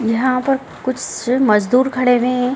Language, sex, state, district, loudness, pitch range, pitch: Hindi, female, Bihar, Gaya, -16 LUFS, 245-260 Hz, 255 Hz